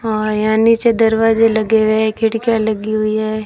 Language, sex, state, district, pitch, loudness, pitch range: Hindi, female, Rajasthan, Jaisalmer, 220 Hz, -14 LUFS, 215-225 Hz